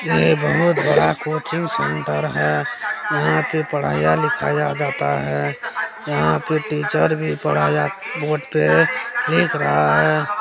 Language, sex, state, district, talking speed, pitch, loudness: Maithili, male, Bihar, Supaul, 125 wpm, 75 Hz, -19 LUFS